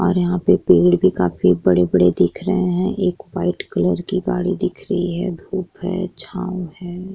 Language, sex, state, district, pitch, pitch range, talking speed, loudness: Hindi, female, Uttar Pradesh, Jyotiba Phule Nagar, 180 Hz, 125-185 Hz, 175 wpm, -19 LUFS